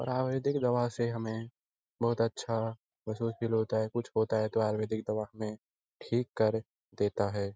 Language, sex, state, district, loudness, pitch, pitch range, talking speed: Hindi, male, Bihar, Lakhisarai, -33 LUFS, 110 Hz, 110-115 Hz, 150 wpm